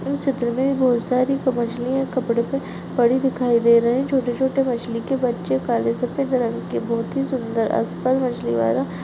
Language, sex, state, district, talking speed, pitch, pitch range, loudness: Hindi, female, Chhattisgarh, Rajnandgaon, 170 wpm, 250 Hz, 235-265 Hz, -21 LUFS